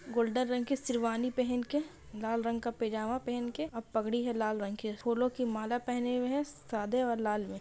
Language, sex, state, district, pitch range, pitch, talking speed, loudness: Hindi, female, Bihar, Purnia, 225-250 Hz, 240 Hz, 230 wpm, -34 LUFS